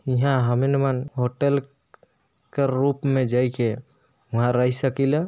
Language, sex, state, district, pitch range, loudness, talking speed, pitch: Hindi, male, Chhattisgarh, Jashpur, 125-140 Hz, -23 LUFS, 135 wpm, 130 Hz